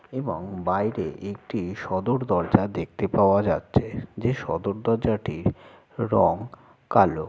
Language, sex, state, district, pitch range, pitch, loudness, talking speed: Bengali, male, West Bengal, Jalpaiguri, 95-115 Hz, 100 Hz, -25 LUFS, 105 wpm